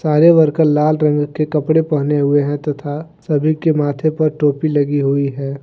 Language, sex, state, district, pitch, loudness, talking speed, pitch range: Hindi, male, Jharkhand, Deoghar, 150 Hz, -15 LUFS, 190 wpm, 145-155 Hz